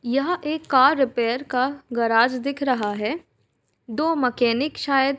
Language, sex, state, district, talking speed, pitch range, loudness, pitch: Hindi, female, Uttar Pradesh, Jalaun, 150 wpm, 240-285 Hz, -22 LUFS, 265 Hz